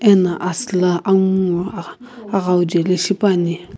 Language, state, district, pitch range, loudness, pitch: Sumi, Nagaland, Kohima, 175-200 Hz, -17 LUFS, 185 Hz